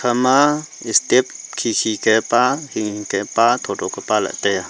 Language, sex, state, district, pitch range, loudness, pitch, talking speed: Wancho, male, Arunachal Pradesh, Longding, 105-125 Hz, -18 LUFS, 115 Hz, 155 wpm